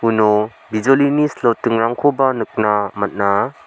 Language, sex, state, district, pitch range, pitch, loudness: Garo, male, Meghalaya, South Garo Hills, 105-130 Hz, 115 Hz, -17 LUFS